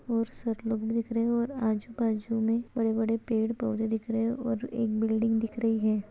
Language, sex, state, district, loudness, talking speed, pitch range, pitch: Hindi, female, Chhattisgarh, Bilaspur, -29 LUFS, 195 wpm, 220-230 Hz, 225 Hz